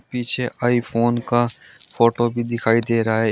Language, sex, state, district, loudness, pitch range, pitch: Hindi, male, Uttar Pradesh, Shamli, -20 LUFS, 115-120 Hz, 120 Hz